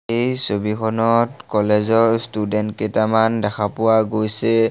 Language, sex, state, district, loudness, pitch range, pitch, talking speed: Assamese, male, Assam, Sonitpur, -18 LUFS, 105-115 Hz, 110 Hz, 100 wpm